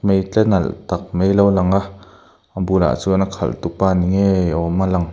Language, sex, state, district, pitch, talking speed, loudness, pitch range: Mizo, male, Mizoram, Aizawl, 95 Hz, 210 wpm, -17 LUFS, 90-95 Hz